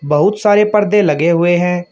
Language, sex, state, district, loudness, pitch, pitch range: Hindi, male, Uttar Pradesh, Shamli, -12 LUFS, 180 Hz, 170-205 Hz